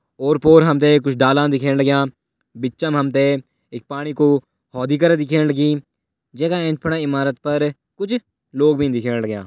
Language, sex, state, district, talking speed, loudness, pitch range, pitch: Garhwali, male, Uttarakhand, Tehri Garhwal, 160 wpm, -18 LUFS, 135-150 Hz, 145 Hz